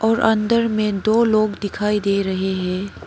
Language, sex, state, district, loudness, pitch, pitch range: Hindi, female, Arunachal Pradesh, Papum Pare, -19 LUFS, 210 Hz, 200-220 Hz